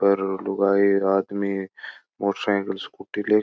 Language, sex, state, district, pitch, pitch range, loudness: Marwari, male, Rajasthan, Churu, 100 Hz, 95-100 Hz, -23 LUFS